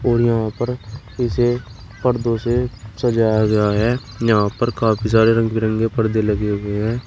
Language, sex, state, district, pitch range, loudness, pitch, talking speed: Hindi, male, Uttar Pradesh, Shamli, 110-120 Hz, -19 LUFS, 115 Hz, 160 wpm